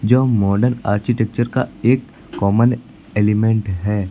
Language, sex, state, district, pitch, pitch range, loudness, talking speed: Hindi, male, Uttar Pradesh, Lucknow, 110 Hz, 105-120 Hz, -18 LUFS, 115 wpm